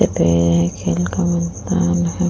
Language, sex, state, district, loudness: Hindi, female, Uttar Pradesh, Muzaffarnagar, -18 LUFS